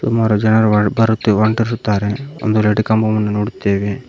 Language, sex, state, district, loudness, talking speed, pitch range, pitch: Kannada, male, Karnataka, Koppal, -15 LUFS, 105 wpm, 105-110 Hz, 110 Hz